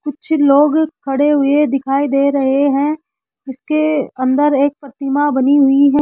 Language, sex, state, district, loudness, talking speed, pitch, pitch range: Hindi, male, Rajasthan, Jaipur, -14 LUFS, 150 wpm, 285 Hz, 275-295 Hz